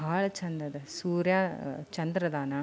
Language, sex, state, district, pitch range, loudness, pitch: Kannada, female, Karnataka, Belgaum, 145-180 Hz, -31 LUFS, 165 Hz